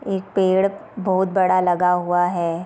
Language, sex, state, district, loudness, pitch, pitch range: Hindi, female, Bihar, Darbhanga, -19 LUFS, 185 Hz, 180-195 Hz